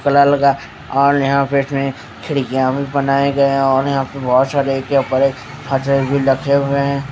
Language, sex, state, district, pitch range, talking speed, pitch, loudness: Hindi, male, Haryana, Charkhi Dadri, 135-140 Hz, 145 wpm, 140 Hz, -16 LUFS